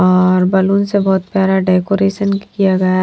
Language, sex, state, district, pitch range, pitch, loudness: Hindi, female, Himachal Pradesh, Shimla, 185-195 Hz, 190 Hz, -14 LUFS